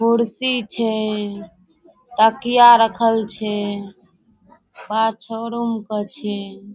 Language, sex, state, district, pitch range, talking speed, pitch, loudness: Maithili, female, Bihar, Darbhanga, 205-235 Hz, 80 wpm, 220 Hz, -18 LUFS